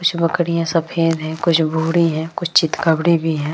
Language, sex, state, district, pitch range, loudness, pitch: Hindi, female, Bihar, Vaishali, 160-170 Hz, -17 LUFS, 165 Hz